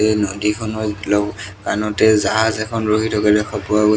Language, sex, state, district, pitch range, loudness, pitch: Assamese, male, Assam, Sonitpur, 105-110 Hz, -18 LUFS, 105 Hz